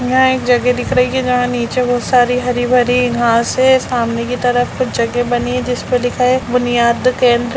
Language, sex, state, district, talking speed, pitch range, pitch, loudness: Hindi, female, Bihar, Muzaffarpur, 205 wpm, 245-250 Hz, 245 Hz, -14 LUFS